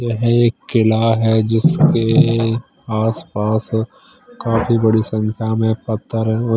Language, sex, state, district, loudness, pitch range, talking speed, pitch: Hindi, male, Chandigarh, Chandigarh, -16 LUFS, 110-120 Hz, 110 wpm, 115 Hz